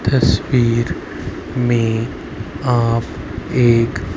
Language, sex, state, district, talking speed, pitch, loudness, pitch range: Hindi, male, Haryana, Rohtak, 60 wpm, 115 Hz, -18 LUFS, 105-120 Hz